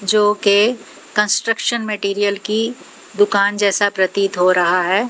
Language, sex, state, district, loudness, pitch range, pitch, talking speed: Hindi, female, Haryana, Jhajjar, -16 LUFS, 200-215 Hz, 205 Hz, 115 wpm